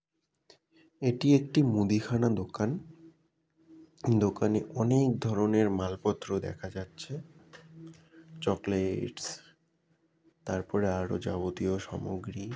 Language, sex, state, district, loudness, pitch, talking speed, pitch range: Bengali, male, West Bengal, Dakshin Dinajpur, -30 LUFS, 125 Hz, 85 wpm, 100-160 Hz